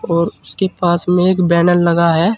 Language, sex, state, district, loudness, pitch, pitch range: Hindi, male, Uttar Pradesh, Saharanpur, -14 LUFS, 175 Hz, 170-185 Hz